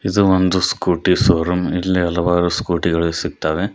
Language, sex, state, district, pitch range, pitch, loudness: Kannada, male, Karnataka, Koppal, 85-95 Hz, 90 Hz, -17 LUFS